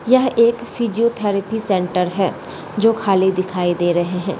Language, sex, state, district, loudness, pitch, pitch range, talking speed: Hindi, female, Bihar, Gopalganj, -18 LUFS, 195 Hz, 180-230 Hz, 150 wpm